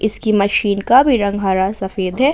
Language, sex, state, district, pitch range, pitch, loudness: Hindi, female, Jharkhand, Ranchi, 195-230 Hz, 205 Hz, -15 LUFS